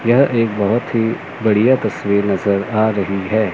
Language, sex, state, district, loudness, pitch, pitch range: Hindi, male, Chandigarh, Chandigarh, -17 LUFS, 110 Hz, 100-115 Hz